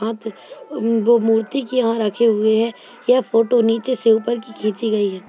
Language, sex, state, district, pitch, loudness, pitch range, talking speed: Hindi, female, Chhattisgarh, Kabirdham, 225 Hz, -18 LUFS, 220-235 Hz, 160 wpm